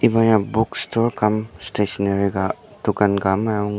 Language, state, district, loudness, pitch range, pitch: Ao, Nagaland, Dimapur, -20 LUFS, 100-110 Hz, 105 Hz